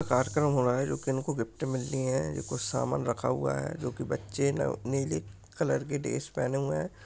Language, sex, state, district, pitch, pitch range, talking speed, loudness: Angika, male, Bihar, Supaul, 130 Hz, 110-135 Hz, 230 wpm, -31 LUFS